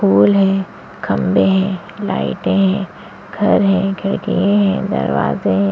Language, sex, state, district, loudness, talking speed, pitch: Hindi, female, Uttarakhand, Tehri Garhwal, -16 LUFS, 125 wpm, 195 Hz